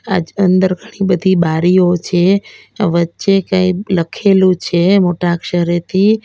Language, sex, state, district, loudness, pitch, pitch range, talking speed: Gujarati, female, Gujarat, Valsad, -14 LUFS, 185 Hz, 175-195 Hz, 125 wpm